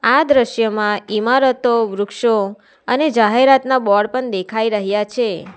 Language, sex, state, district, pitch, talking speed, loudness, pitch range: Gujarati, female, Gujarat, Valsad, 225 Hz, 120 wpm, -16 LUFS, 210-255 Hz